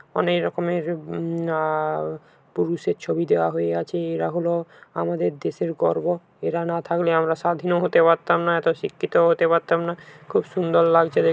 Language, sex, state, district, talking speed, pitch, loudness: Bengali, male, West Bengal, Paschim Medinipur, 160 wpm, 165 Hz, -22 LUFS